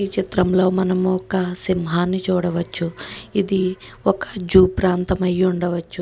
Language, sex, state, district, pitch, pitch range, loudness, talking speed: Telugu, female, Andhra Pradesh, Guntur, 185 Hz, 175-185 Hz, -20 LUFS, 150 wpm